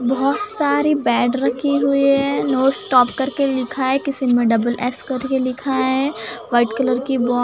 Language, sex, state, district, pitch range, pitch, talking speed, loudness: Hindi, male, Maharashtra, Gondia, 245-275 Hz, 260 Hz, 185 wpm, -18 LUFS